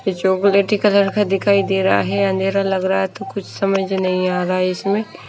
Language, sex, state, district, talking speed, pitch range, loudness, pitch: Hindi, female, Himachal Pradesh, Shimla, 215 wpm, 190-200 Hz, -18 LUFS, 195 Hz